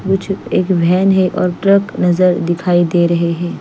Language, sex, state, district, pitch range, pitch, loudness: Hindi, female, Chandigarh, Chandigarh, 175-190 Hz, 180 Hz, -14 LUFS